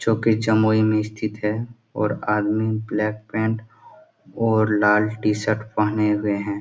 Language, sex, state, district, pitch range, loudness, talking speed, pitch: Hindi, male, Bihar, Jamui, 105-110 Hz, -21 LUFS, 155 wpm, 110 Hz